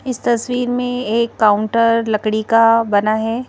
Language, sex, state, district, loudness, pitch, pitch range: Hindi, female, Madhya Pradesh, Bhopal, -16 LUFS, 230 Hz, 215-245 Hz